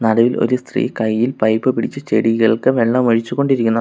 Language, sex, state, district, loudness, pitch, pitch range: Malayalam, male, Kerala, Kollam, -16 LUFS, 115 Hz, 115-125 Hz